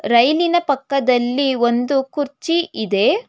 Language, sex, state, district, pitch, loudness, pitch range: Kannada, female, Karnataka, Bangalore, 275 Hz, -18 LUFS, 245-325 Hz